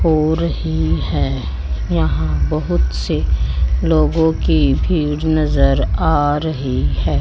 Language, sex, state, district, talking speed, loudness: Hindi, female, Haryana, Jhajjar, 110 wpm, -17 LUFS